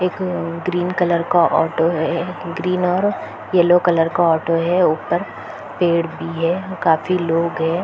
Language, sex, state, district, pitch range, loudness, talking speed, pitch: Hindi, female, Chhattisgarh, Balrampur, 165-180 Hz, -18 LUFS, 160 wpm, 175 Hz